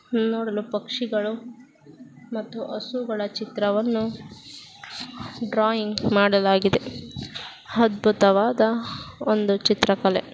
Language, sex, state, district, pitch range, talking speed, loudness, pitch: Kannada, female, Karnataka, Chamarajanagar, 205-230 Hz, 60 wpm, -23 LUFS, 220 Hz